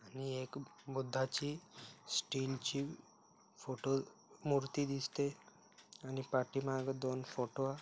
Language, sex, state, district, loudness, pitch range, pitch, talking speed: Marathi, male, Maharashtra, Aurangabad, -40 LUFS, 130-140 Hz, 135 Hz, 105 wpm